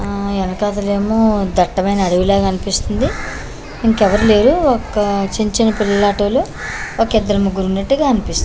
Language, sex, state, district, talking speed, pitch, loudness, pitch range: Telugu, female, Andhra Pradesh, Manyam, 105 wpm, 205 Hz, -16 LUFS, 195-220 Hz